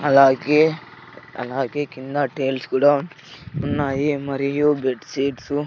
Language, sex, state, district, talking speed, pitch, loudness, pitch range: Telugu, male, Andhra Pradesh, Sri Satya Sai, 105 wpm, 140 Hz, -21 LUFS, 135-150 Hz